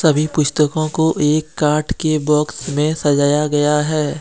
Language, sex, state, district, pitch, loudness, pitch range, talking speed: Hindi, male, Jharkhand, Deoghar, 150 Hz, -17 LUFS, 150-155 Hz, 155 wpm